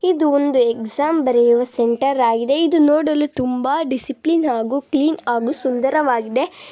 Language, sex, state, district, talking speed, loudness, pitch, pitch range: Kannada, female, Karnataka, Bellary, 125 wpm, -18 LUFS, 275 Hz, 240-305 Hz